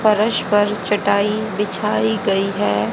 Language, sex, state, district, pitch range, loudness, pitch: Hindi, female, Haryana, Charkhi Dadri, 200-210 Hz, -18 LUFS, 205 Hz